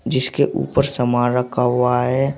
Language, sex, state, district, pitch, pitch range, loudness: Hindi, male, Uttar Pradesh, Saharanpur, 125 Hz, 125-130 Hz, -18 LUFS